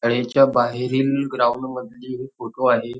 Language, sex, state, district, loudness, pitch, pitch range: Marathi, male, Maharashtra, Nagpur, -20 LUFS, 125 Hz, 120-130 Hz